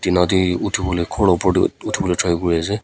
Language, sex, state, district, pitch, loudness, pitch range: Nagamese, female, Nagaland, Kohima, 90 Hz, -18 LUFS, 90-95 Hz